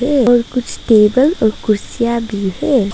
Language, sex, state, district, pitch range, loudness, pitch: Hindi, female, Arunachal Pradesh, Papum Pare, 215-250 Hz, -14 LUFS, 235 Hz